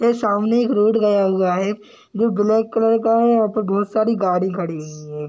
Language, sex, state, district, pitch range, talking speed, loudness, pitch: Hindi, male, Bihar, Gopalganj, 190-225 Hz, 250 wpm, -18 LUFS, 210 Hz